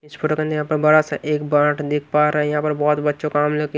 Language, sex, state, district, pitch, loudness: Hindi, male, Odisha, Nuapada, 150 Hz, -19 LUFS